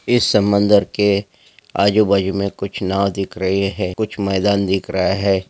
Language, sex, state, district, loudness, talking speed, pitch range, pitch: Hindi, male, Chhattisgarh, Jashpur, -17 LUFS, 175 wpm, 95-100 Hz, 100 Hz